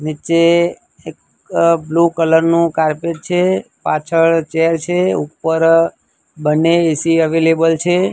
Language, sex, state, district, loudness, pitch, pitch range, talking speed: Gujarati, male, Gujarat, Gandhinagar, -14 LUFS, 165 Hz, 160-170 Hz, 110 wpm